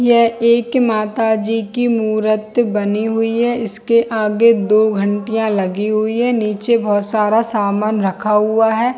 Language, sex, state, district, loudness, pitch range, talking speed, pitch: Hindi, female, Jharkhand, Jamtara, -16 LUFS, 210-230 Hz, 145 wpm, 220 Hz